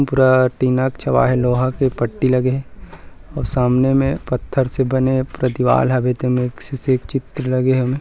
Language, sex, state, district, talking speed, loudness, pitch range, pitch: Chhattisgarhi, male, Chhattisgarh, Rajnandgaon, 195 wpm, -18 LUFS, 125-135 Hz, 130 Hz